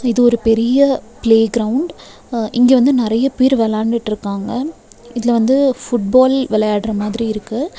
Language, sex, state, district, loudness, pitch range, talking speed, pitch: Tamil, female, Tamil Nadu, Nilgiris, -15 LUFS, 220-260 Hz, 130 wpm, 235 Hz